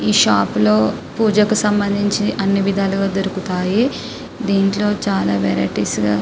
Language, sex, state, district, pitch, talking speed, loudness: Telugu, female, Telangana, Karimnagar, 195 Hz, 125 wpm, -17 LUFS